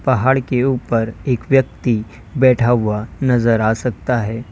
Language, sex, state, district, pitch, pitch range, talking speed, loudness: Hindi, male, Uttar Pradesh, Lalitpur, 120 Hz, 115-130 Hz, 145 wpm, -17 LUFS